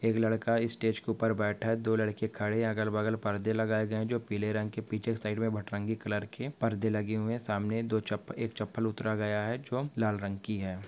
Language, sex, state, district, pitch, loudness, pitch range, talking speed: Hindi, male, Maharashtra, Nagpur, 110 Hz, -32 LUFS, 105-115 Hz, 235 wpm